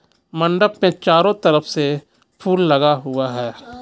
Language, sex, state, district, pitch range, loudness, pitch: Hindi, male, Jharkhand, Ranchi, 145-185 Hz, -17 LUFS, 165 Hz